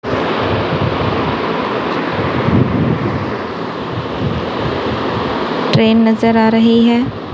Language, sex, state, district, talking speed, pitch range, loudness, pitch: Hindi, female, Punjab, Kapurthala, 40 wpm, 225-230 Hz, -15 LUFS, 230 Hz